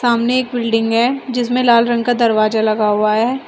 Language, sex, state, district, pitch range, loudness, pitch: Hindi, female, Uttar Pradesh, Shamli, 225-245 Hz, -15 LUFS, 235 Hz